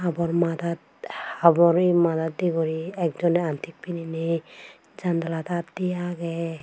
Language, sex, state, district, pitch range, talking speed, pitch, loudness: Chakma, female, Tripura, Unakoti, 165-175 Hz, 125 wpm, 170 Hz, -24 LUFS